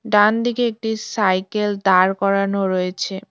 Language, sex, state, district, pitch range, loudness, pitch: Bengali, female, West Bengal, Cooch Behar, 190-220 Hz, -19 LUFS, 200 Hz